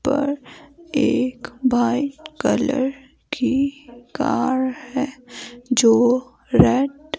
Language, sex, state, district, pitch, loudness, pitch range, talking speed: Hindi, female, Himachal Pradesh, Shimla, 265 Hz, -20 LUFS, 255-280 Hz, 85 wpm